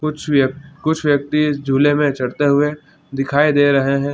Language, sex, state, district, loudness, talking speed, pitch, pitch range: Hindi, male, Chhattisgarh, Bilaspur, -17 LUFS, 190 wpm, 145 Hz, 140-150 Hz